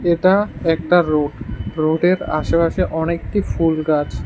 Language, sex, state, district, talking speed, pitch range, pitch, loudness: Bengali, male, Tripura, West Tripura, 115 wpm, 155-175 Hz, 165 Hz, -18 LUFS